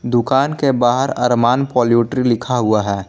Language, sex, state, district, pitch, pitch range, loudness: Hindi, male, Jharkhand, Garhwa, 120 Hz, 120-130 Hz, -16 LUFS